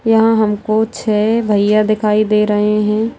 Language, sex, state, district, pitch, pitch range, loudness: Hindi, female, Bihar, Darbhanga, 215 Hz, 210-220 Hz, -14 LUFS